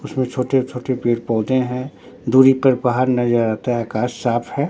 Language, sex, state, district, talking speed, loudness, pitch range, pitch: Hindi, male, Bihar, Katihar, 165 wpm, -18 LUFS, 120-130 Hz, 125 Hz